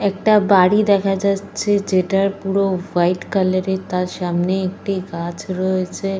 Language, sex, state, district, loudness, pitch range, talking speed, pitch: Bengali, female, Jharkhand, Jamtara, -18 LUFS, 185-195 Hz, 135 wpm, 190 Hz